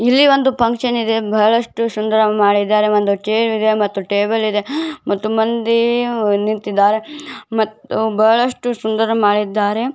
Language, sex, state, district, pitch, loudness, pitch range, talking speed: Kannada, female, Karnataka, Bijapur, 220 Hz, -16 LUFS, 210-235 Hz, 110 wpm